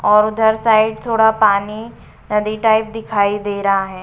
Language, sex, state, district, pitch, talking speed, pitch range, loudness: Hindi, female, Uttar Pradesh, Budaun, 215 Hz, 165 wpm, 205-220 Hz, -16 LUFS